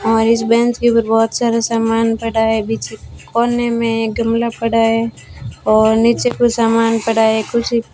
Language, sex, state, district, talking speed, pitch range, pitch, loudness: Hindi, female, Rajasthan, Bikaner, 190 wpm, 225-235 Hz, 230 Hz, -15 LUFS